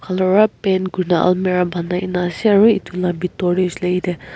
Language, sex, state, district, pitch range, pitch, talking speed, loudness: Nagamese, female, Nagaland, Kohima, 180-185 Hz, 180 Hz, 165 wpm, -17 LUFS